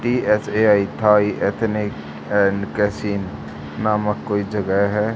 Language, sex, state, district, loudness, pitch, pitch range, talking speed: Hindi, male, Haryana, Charkhi Dadri, -19 LUFS, 105 Hz, 100-105 Hz, 70 wpm